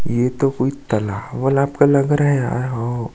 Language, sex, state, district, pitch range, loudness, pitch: Hindi, male, Chhattisgarh, Sukma, 120-140 Hz, -18 LUFS, 130 Hz